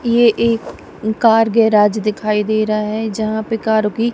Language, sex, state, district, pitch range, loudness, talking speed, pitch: Hindi, female, Punjab, Kapurthala, 215-225 Hz, -16 LUFS, 175 wpm, 220 Hz